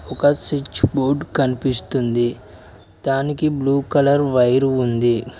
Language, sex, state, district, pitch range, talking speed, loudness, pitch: Telugu, male, Telangana, Mahabubabad, 120-140 Hz, 100 wpm, -19 LUFS, 130 Hz